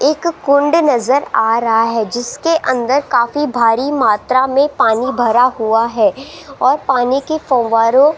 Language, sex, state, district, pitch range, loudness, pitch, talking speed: Hindi, female, Rajasthan, Jaipur, 230-285 Hz, -14 LUFS, 260 Hz, 155 wpm